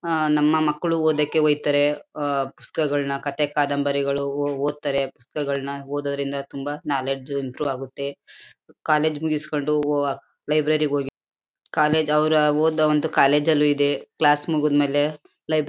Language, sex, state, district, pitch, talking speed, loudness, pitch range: Kannada, female, Karnataka, Mysore, 145 Hz, 120 wpm, -22 LUFS, 140-150 Hz